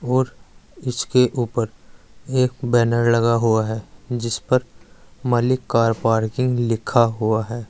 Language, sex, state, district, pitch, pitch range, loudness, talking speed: Hindi, male, Uttar Pradesh, Saharanpur, 115 Hz, 115-125 Hz, -20 LUFS, 125 wpm